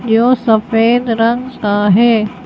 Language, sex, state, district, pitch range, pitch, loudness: Hindi, female, Madhya Pradesh, Bhopal, 220-245 Hz, 230 Hz, -12 LUFS